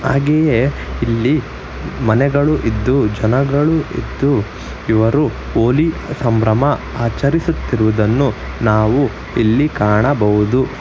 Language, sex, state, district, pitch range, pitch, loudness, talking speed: Kannada, male, Karnataka, Bangalore, 110-140 Hz, 120 Hz, -15 LUFS, 70 wpm